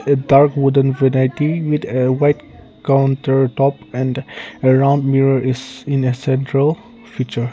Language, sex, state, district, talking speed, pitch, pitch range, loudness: English, male, Nagaland, Kohima, 125 wpm, 135 Hz, 130-140 Hz, -16 LUFS